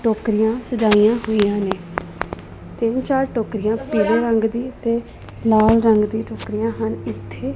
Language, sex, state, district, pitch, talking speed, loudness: Punjabi, female, Punjab, Pathankot, 215 Hz, 135 wpm, -19 LUFS